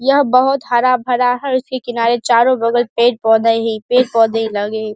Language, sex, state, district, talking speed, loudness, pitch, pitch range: Hindi, female, Bihar, Saharsa, 155 wpm, -14 LUFS, 240 Hz, 225-255 Hz